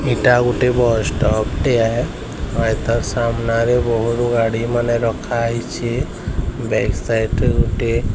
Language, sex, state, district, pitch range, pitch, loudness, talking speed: Odia, male, Odisha, Sambalpur, 115-120 Hz, 115 Hz, -18 LUFS, 120 wpm